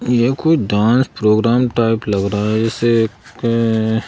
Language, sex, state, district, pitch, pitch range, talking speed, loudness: Hindi, male, Madhya Pradesh, Bhopal, 115 Hz, 110-120 Hz, 130 wpm, -16 LUFS